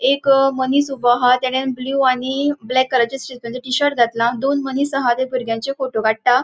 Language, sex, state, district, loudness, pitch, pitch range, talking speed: Konkani, female, Goa, North and South Goa, -18 LUFS, 260 Hz, 245-270 Hz, 185 wpm